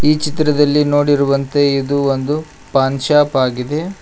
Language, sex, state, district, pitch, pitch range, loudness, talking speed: Kannada, male, Karnataka, Koppal, 145 Hz, 135-150 Hz, -15 LUFS, 120 wpm